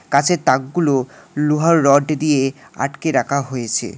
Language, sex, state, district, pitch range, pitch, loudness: Bengali, male, West Bengal, Alipurduar, 135-150 Hz, 140 Hz, -17 LUFS